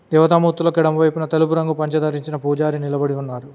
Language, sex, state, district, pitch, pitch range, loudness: Telugu, male, Telangana, Mahabubabad, 155 Hz, 145-160 Hz, -18 LUFS